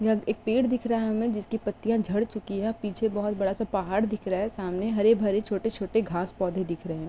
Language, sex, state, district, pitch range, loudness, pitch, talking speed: Hindi, female, Uttar Pradesh, Etah, 195-225 Hz, -27 LUFS, 210 Hz, 260 wpm